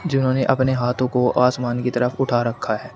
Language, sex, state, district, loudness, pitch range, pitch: Hindi, male, Uttar Pradesh, Shamli, -20 LUFS, 120-130 Hz, 125 Hz